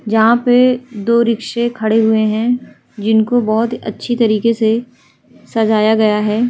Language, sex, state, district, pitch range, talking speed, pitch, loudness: Hindi, female, Uttar Pradesh, Hamirpur, 220-240 Hz, 140 wpm, 225 Hz, -14 LUFS